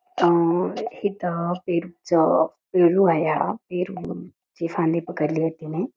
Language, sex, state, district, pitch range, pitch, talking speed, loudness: Marathi, female, Karnataka, Belgaum, 165-185 Hz, 175 Hz, 110 wpm, -23 LUFS